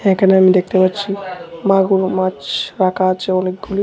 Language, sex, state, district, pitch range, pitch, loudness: Bengali, male, Tripura, West Tripura, 185-195 Hz, 185 Hz, -15 LUFS